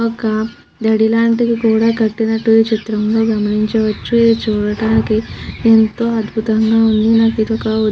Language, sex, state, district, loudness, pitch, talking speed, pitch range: Telugu, female, Andhra Pradesh, Krishna, -14 LUFS, 220 Hz, 115 wpm, 220-225 Hz